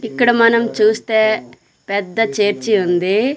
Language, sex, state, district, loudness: Telugu, male, Andhra Pradesh, Manyam, -15 LUFS